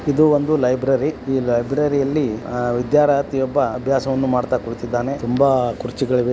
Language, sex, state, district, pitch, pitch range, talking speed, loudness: Kannada, male, Karnataka, Belgaum, 130 Hz, 125-140 Hz, 105 wpm, -19 LUFS